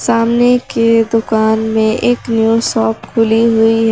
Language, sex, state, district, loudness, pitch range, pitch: Hindi, female, Jharkhand, Garhwa, -12 LUFS, 225-230 Hz, 225 Hz